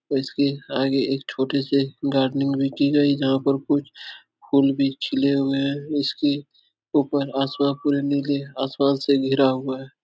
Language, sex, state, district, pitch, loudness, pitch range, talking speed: Hindi, male, Uttar Pradesh, Etah, 140 Hz, -22 LUFS, 135-140 Hz, 160 wpm